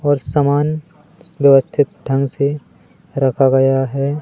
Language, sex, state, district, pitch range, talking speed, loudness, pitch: Hindi, male, Madhya Pradesh, Katni, 135-150 Hz, 115 wpm, -16 LUFS, 140 Hz